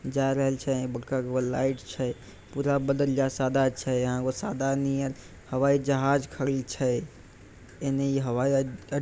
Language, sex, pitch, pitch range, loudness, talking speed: Maithili, male, 135 Hz, 125-135 Hz, -28 LUFS, 165 wpm